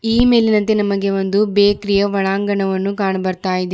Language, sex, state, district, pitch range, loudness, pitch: Kannada, female, Karnataka, Bidar, 195-210 Hz, -16 LUFS, 200 Hz